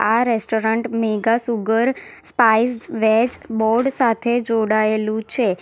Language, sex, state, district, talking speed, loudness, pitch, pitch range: Gujarati, female, Gujarat, Valsad, 105 wpm, -19 LUFS, 225 Hz, 220-235 Hz